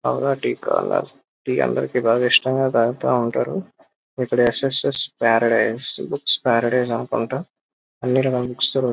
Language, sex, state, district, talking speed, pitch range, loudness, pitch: Telugu, male, Andhra Pradesh, Krishna, 120 wpm, 120-130 Hz, -20 LUFS, 125 Hz